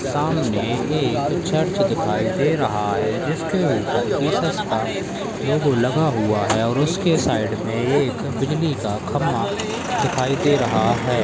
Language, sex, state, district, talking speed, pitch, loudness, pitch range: Hindi, male, Goa, North and South Goa, 145 wpm, 135 Hz, -21 LUFS, 115-155 Hz